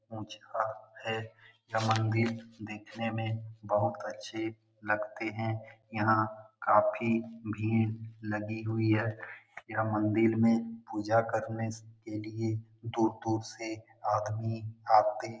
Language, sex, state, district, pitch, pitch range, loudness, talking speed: Hindi, male, Bihar, Jamui, 110 Hz, 110-115 Hz, -32 LUFS, 100 wpm